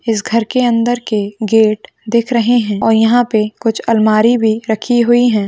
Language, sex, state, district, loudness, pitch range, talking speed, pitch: Hindi, female, Rajasthan, Churu, -13 LUFS, 215-240 Hz, 195 wpm, 225 Hz